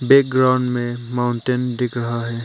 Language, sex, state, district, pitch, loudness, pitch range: Hindi, male, Arunachal Pradesh, Papum Pare, 125 Hz, -19 LUFS, 120-125 Hz